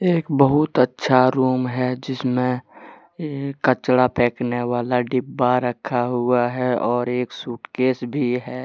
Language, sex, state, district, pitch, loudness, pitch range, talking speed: Hindi, male, Jharkhand, Deoghar, 125 Hz, -20 LUFS, 125-130 Hz, 125 wpm